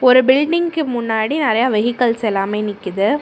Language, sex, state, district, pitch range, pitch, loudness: Tamil, female, Tamil Nadu, Namakkal, 215-290 Hz, 240 Hz, -17 LUFS